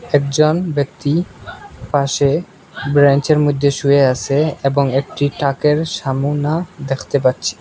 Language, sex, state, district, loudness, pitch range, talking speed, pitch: Bengali, male, Assam, Hailakandi, -16 LUFS, 140-150 Hz, 100 wpm, 140 Hz